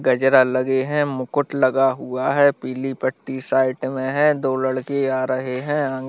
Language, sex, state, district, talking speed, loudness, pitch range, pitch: Hindi, male, Bihar, Lakhisarai, 185 wpm, -20 LUFS, 130-140 Hz, 130 Hz